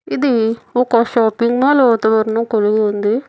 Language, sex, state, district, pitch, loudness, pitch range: Telugu, female, Telangana, Hyderabad, 230 Hz, -15 LUFS, 220-245 Hz